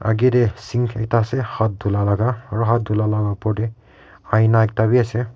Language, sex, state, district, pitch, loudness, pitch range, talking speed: Nagamese, male, Nagaland, Kohima, 110 Hz, -19 LUFS, 110-115 Hz, 200 wpm